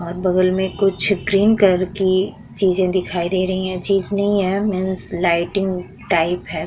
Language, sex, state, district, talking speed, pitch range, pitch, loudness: Hindi, female, Uttar Pradesh, Muzaffarnagar, 170 wpm, 180-195 Hz, 185 Hz, -18 LUFS